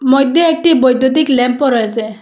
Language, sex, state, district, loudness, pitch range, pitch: Bengali, female, Assam, Hailakandi, -12 LUFS, 245-305 Hz, 265 Hz